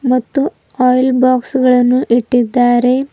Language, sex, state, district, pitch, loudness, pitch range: Kannada, female, Karnataka, Bidar, 255 Hz, -13 LUFS, 245-260 Hz